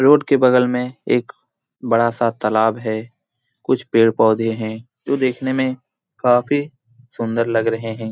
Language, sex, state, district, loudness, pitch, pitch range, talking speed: Hindi, male, Bihar, Jamui, -18 LUFS, 120 Hz, 115-125 Hz, 140 wpm